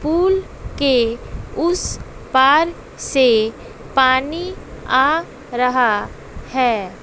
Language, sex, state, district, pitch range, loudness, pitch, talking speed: Hindi, female, Bihar, West Champaran, 245-320 Hz, -17 LUFS, 260 Hz, 75 wpm